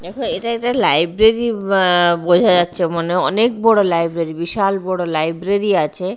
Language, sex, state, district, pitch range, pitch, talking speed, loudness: Bengali, female, Odisha, Nuapada, 170-210 Hz, 185 Hz, 145 wpm, -16 LUFS